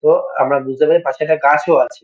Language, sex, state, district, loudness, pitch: Bengali, male, West Bengal, Kolkata, -15 LUFS, 160 Hz